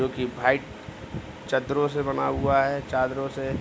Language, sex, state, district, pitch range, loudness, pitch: Hindi, male, Bihar, Gopalganj, 125-135 Hz, -25 LUFS, 135 Hz